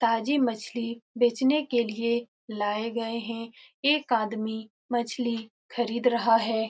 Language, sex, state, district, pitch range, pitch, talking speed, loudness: Hindi, female, Bihar, Lakhisarai, 225-240 Hz, 235 Hz, 125 wpm, -27 LUFS